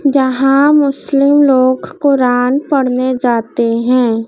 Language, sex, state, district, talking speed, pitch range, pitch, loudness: Hindi, female, Madhya Pradesh, Dhar, 100 wpm, 245-280 Hz, 260 Hz, -12 LUFS